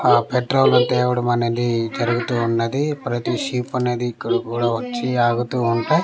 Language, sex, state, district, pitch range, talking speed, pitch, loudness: Telugu, male, Andhra Pradesh, Manyam, 120-125 Hz, 130 wpm, 120 Hz, -20 LUFS